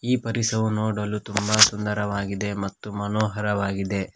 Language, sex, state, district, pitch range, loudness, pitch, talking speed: Kannada, male, Karnataka, Koppal, 100-110 Hz, -23 LUFS, 105 Hz, 100 wpm